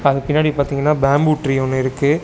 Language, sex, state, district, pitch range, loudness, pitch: Tamil, male, Tamil Nadu, Chennai, 135-150 Hz, -17 LUFS, 140 Hz